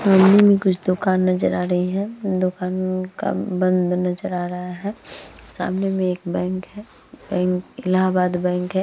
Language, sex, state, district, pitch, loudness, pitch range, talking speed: Hindi, female, Uttar Pradesh, Hamirpur, 185 Hz, -20 LUFS, 180-190 Hz, 165 wpm